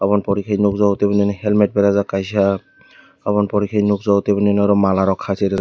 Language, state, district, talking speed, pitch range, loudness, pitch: Kokborok, Tripura, West Tripura, 170 wpm, 100-105 Hz, -17 LUFS, 100 Hz